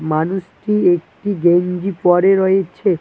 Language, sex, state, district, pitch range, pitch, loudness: Bengali, male, West Bengal, Cooch Behar, 175-195 Hz, 180 Hz, -16 LUFS